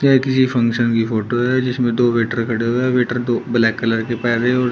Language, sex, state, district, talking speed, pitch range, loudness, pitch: Hindi, male, Uttar Pradesh, Shamli, 255 wpm, 115-125 Hz, -17 LUFS, 120 Hz